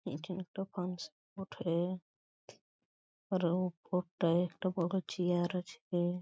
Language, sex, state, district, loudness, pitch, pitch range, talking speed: Bengali, male, West Bengal, Paschim Medinipur, -36 LUFS, 180 Hz, 175-185 Hz, 95 wpm